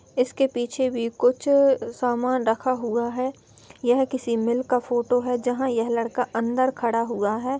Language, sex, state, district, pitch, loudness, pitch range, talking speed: Hindi, female, Bihar, Jahanabad, 245 Hz, -23 LUFS, 235-255 Hz, 165 wpm